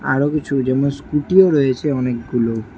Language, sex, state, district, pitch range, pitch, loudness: Bengali, female, West Bengal, Alipurduar, 125-145 Hz, 135 Hz, -17 LUFS